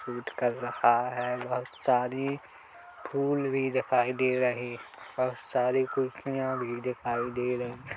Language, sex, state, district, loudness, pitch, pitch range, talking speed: Hindi, male, Chhattisgarh, Kabirdham, -30 LUFS, 125 Hz, 125-130 Hz, 135 wpm